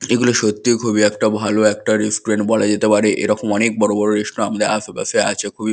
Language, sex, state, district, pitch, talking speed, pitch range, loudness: Bengali, male, West Bengal, Kolkata, 105 Hz, 200 wpm, 105-110 Hz, -17 LUFS